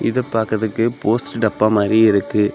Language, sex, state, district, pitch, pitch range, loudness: Tamil, male, Tamil Nadu, Kanyakumari, 110 Hz, 105-115 Hz, -17 LUFS